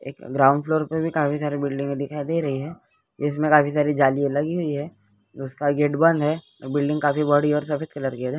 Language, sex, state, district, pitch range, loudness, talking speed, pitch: Hindi, male, West Bengal, Malda, 140-150 Hz, -22 LUFS, 230 wpm, 145 Hz